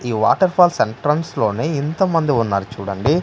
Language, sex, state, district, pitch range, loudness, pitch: Telugu, male, Andhra Pradesh, Manyam, 115-165 Hz, -18 LUFS, 145 Hz